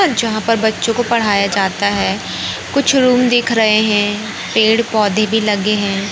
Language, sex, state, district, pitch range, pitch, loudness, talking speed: Hindi, male, Madhya Pradesh, Katni, 205-235 Hz, 220 Hz, -14 LUFS, 155 wpm